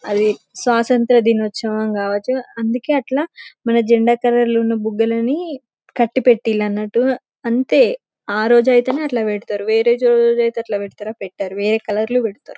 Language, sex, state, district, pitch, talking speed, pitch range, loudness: Telugu, female, Telangana, Karimnagar, 235 Hz, 130 wpm, 215-250 Hz, -17 LUFS